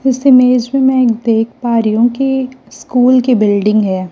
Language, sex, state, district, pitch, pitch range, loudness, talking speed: Hindi, female, Chhattisgarh, Raipur, 245 Hz, 225-260 Hz, -12 LUFS, 190 wpm